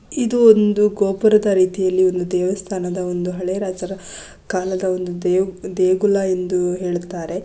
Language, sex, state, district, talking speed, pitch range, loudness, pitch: Kannada, female, Karnataka, Gulbarga, 120 wpm, 180-195 Hz, -18 LUFS, 185 Hz